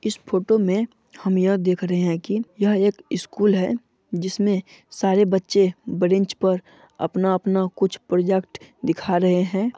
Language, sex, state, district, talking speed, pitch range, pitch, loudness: Hindi, female, Bihar, Supaul, 145 wpm, 185-205 Hz, 190 Hz, -22 LUFS